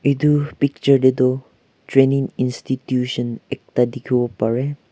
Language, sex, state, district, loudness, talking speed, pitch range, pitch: Nagamese, male, Nagaland, Kohima, -19 LUFS, 110 wpm, 125-140 Hz, 130 Hz